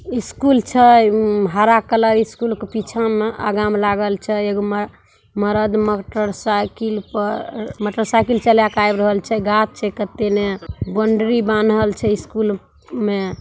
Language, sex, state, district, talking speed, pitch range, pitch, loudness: Maithili, female, Bihar, Samastipur, 120 wpm, 205-220 Hz, 215 Hz, -17 LUFS